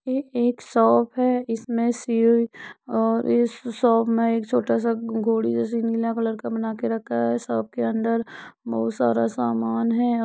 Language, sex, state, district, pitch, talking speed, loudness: Hindi, female, Uttar Pradesh, Muzaffarnagar, 230 Hz, 180 wpm, -23 LUFS